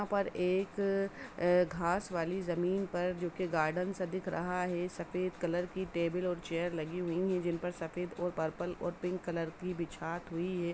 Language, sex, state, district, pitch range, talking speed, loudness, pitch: Hindi, female, Bihar, East Champaran, 170-185 Hz, 195 wpm, -35 LUFS, 180 Hz